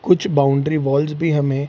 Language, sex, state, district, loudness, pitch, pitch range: Hindi, male, Bihar, Sitamarhi, -18 LUFS, 145 Hz, 140-155 Hz